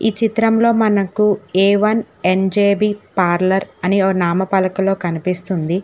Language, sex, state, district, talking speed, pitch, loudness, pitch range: Telugu, female, Telangana, Hyderabad, 125 wpm, 195 Hz, -16 LUFS, 185-210 Hz